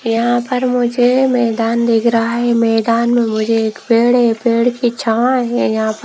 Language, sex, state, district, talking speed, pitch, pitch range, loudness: Hindi, female, Himachal Pradesh, Shimla, 200 wpm, 235 Hz, 230-245 Hz, -14 LUFS